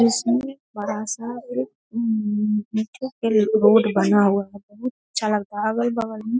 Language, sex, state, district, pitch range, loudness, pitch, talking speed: Hindi, female, Bihar, Darbhanga, 210-235 Hz, -22 LUFS, 220 Hz, 180 wpm